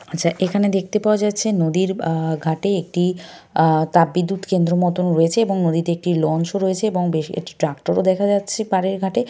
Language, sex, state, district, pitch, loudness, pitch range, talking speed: Bengali, female, West Bengal, North 24 Parganas, 180 Hz, -19 LUFS, 165-200 Hz, 195 wpm